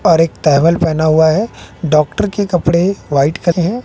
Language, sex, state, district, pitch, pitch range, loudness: Hindi, male, Bihar, West Champaran, 165 Hz, 155-180 Hz, -13 LUFS